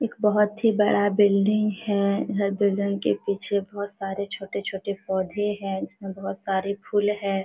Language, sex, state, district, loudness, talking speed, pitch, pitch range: Hindi, female, Jharkhand, Sahebganj, -25 LUFS, 170 wpm, 200 Hz, 195-205 Hz